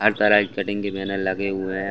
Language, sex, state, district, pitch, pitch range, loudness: Hindi, male, Chhattisgarh, Bastar, 100 Hz, 95-105 Hz, -22 LUFS